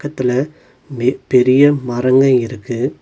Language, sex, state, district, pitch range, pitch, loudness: Tamil, male, Tamil Nadu, Nilgiris, 125-135 Hz, 130 Hz, -15 LUFS